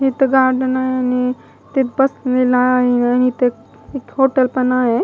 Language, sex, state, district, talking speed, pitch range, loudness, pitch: Marathi, female, Maharashtra, Mumbai Suburban, 145 wpm, 250-265 Hz, -16 LUFS, 255 Hz